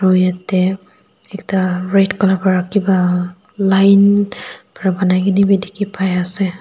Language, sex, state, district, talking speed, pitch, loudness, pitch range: Nagamese, female, Nagaland, Dimapur, 120 wpm, 190 Hz, -15 LUFS, 185-195 Hz